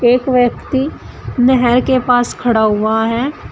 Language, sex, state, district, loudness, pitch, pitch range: Hindi, female, Uttar Pradesh, Shamli, -14 LUFS, 245 Hz, 235-255 Hz